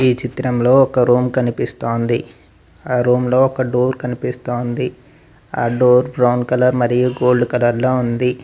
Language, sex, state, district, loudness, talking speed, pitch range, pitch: Telugu, male, Telangana, Mahabubabad, -16 LUFS, 135 wpm, 120-125 Hz, 125 Hz